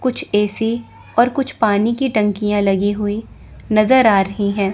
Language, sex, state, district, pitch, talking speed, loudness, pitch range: Hindi, female, Chandigarh, Chandigarh, 215 Hz, 165 wpm, -17 LUFS, 205-240 Hz